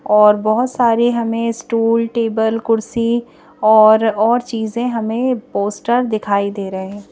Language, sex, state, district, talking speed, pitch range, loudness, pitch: Hindi, female, Madhya Pradesh, Bhopal, 135 wpm, 215-235 Hz, -16 LUFS, 225 Hz